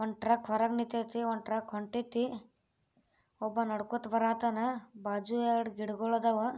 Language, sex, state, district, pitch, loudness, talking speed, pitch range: Kannada, female, Karnataka, Bijapur, 230 Hz, -33 LUFS, 120 wpm, 220-235 Hz